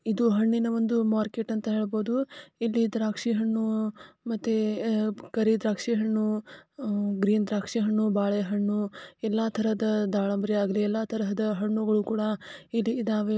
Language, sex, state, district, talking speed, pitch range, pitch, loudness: Kannada, female, Karnataka, Gulbarga, 130 wpm, 210-225 Hz, 215 Hz, -27 LUFS